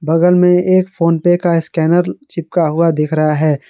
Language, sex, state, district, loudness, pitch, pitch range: Hindi, male, Jharkhand, Garhwa, -13 LUFS, 170 Hz, 160-175 Hz